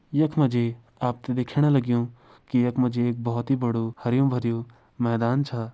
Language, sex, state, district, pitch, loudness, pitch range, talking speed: Garhwali, male, Uttarakhand, Uttarkashi, 120 Hz, -25 LUFS, 120-130 Hz, 200 wpm